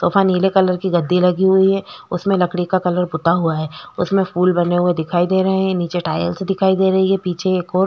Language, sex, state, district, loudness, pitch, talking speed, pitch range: Hindi, female, Chhattisgarh, Korba, -17 LUFS, 180 Hz, 245 wpm, 175-190 Hz